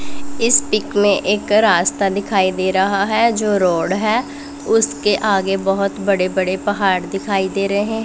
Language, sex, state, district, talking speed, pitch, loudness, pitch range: Hindi, female, Punjab, Pathankot, 170 wpm, 200 Hz, -17 LUFS, 190-220 Hz